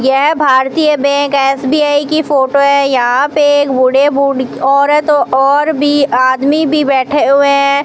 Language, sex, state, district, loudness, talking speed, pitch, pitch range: Hindi, female, Rajasthan, Bikaner, -11 LUFS, 155 wpm, 280 Hz, 270-290 Hz